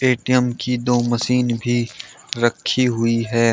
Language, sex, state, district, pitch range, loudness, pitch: Hindi, male, Uttar Pradesh, Shamli, 115-125 Hz, -19 LUFS, 120 Hz